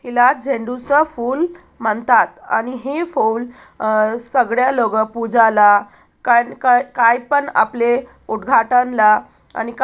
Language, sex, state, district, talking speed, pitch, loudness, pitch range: Marathi, female, Maharashtra, Aurangabad, 110 wpm, 245 Hz, -16 LUFS, 230-260 Hz